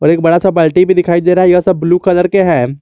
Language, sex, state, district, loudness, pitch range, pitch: Hindi, male, Jharkhand, Garhwa, -10 LUFS, 170-185 Hz, 180 Hz